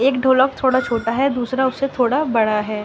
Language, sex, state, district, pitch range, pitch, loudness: Hindi, female, Uttar Pradesh, Varanasi, 235-265 Hz, 255 Hz, -18 LUFS